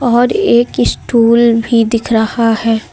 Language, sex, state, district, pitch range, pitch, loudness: Hindi, female, Uttar Pradesh, Lucknow, 225-235 Hz, 230 Hz, -12 LUFS